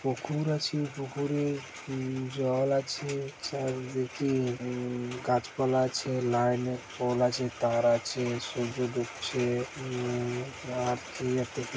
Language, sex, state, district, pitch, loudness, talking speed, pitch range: Bengali, male, West Bengal, Dakshin Dinajpur, 125 Hz, -31 LUFS, 105 wpm, 125-135 Hz